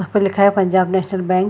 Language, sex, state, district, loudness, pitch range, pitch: Hindi, female, Chhattisgarh, Bilaspur, -16 LUFS, 185-200 Hz, 190 Hz